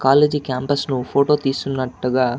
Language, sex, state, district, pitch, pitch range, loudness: Telugu, male, Andhra Pradesh, Anantapur, 135 Hz, 130-140 Hz, -19 LUFS